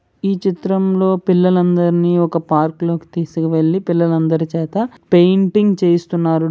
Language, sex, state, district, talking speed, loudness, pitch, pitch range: Telugu, male, Andhra Pradesh, Srikakulam, 100 wpm, -16 LUFS, 175 Hz, 165-190 Hz